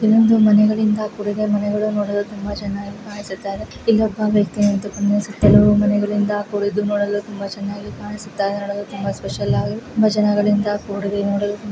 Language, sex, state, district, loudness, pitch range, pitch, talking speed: Kannada, female, Karnataka, Mysore, -19 LUFS, 205-210 Hz, 205 Hz, 150 wpm